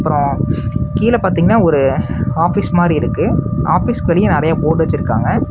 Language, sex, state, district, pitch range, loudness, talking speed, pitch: Tamil, male, Tamil Nadu, Namakkal, 140-160 Hz, -14 LUFS, 130 wpm, 150 Hz